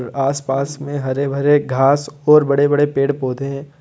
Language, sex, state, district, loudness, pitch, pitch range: Hindi, male, Jharkhand, Deoghar, -17 LUFS, 140 Hz, 135-145 Hz